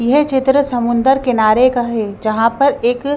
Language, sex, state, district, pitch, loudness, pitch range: Hindi, female, Bihar, Patna, 245 Hz, -14 LUFS, 230-270 Hz